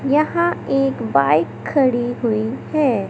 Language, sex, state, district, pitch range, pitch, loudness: Hindi, male, Madhya Pradesh, Katni, 195-285 Hz, 245 Hz, -19 LUFS